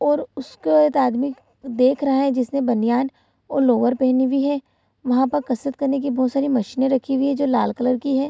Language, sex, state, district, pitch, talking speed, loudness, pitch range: Hindi, female, Bihar, Saharsa, 265 Hz, 215 wpm, -20 LUFS, 255-275 Hz